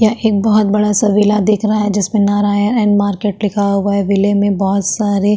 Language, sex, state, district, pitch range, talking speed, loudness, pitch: Hindi, female, Uttarakhand, Tehri Garhwal, 200-210 Hz, 235 wpm, -14 LUFS, 205 Hz